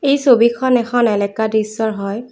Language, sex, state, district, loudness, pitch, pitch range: Assamese, female, Assam, Kamrup Metropolitan, -16 LUFS, 230 Hz, 215-245 Hz